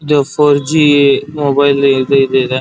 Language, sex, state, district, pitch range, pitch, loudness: Kannada, male, Karnataka, Dharwad, 135-145 Hz, 140 Hz, -11 LUFS